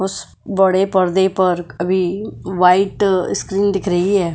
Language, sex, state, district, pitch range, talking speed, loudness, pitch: Hindi, female, Goa, North and South Goa, 180-195 Hz, 140 wpm, -17 LUFS, 190 Hz